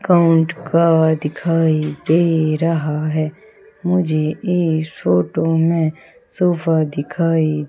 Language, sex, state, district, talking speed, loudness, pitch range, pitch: Hindi, female, Madhya Pradesh, Umaria, 95 wpm, -17 LUFS, 155-170 Hz, 160 Hz